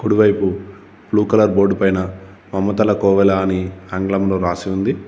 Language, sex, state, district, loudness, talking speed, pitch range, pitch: Telugu, male, Telangana, Komaram Bheem, -17 LUFS, 130 wpm, 95-100 Hz, 95 Hz